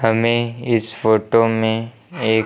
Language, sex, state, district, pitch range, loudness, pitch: Hindi, male, Uttar Pradesh, Lucknow, 110-115 Hz, -18 LUFS, 115 Hz